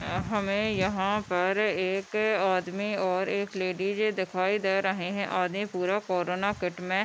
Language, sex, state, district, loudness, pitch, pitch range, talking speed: Hindi, female, Bihar, Madhepura, -28 LUFS, 190 Hz, 185-205 Hz, 155 wpm